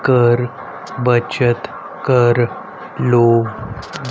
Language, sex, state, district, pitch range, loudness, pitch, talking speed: Hindi, male, Haryana, Rohtak, 120-130 Hz, -16 LUFS, 120 Hz, 60 wpm